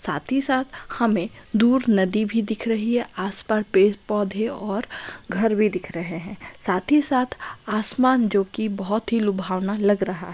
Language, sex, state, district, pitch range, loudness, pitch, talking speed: Hindi, female, Chhattisgarh, Raigarh, 195-230 Hz, -21 LUFS, 215 Hz, 155 wpm